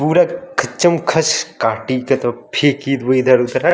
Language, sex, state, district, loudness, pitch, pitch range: Hindi, male, Chandigarh, Chandigarh, -16 LUFS, 135 Hz, 130-170 Hz